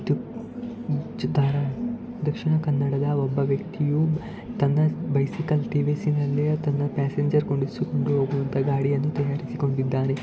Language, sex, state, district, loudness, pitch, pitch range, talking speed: Kannada, male, Karnataka, Dakshina Kannada, -25 LUFS, 145 Hz, 140-155 Hz, 90 wpm